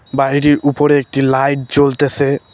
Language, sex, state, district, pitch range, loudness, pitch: Bengali, male, West Bengal, Cooch Behar, 135-145 Hz, -14 LUFS, 140 Hz